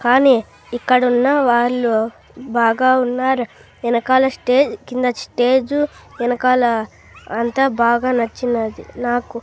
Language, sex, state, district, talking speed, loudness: Telugu, male, Andhra Pradesh, Sri Satya Sai, 90 wpm, -17 LUFS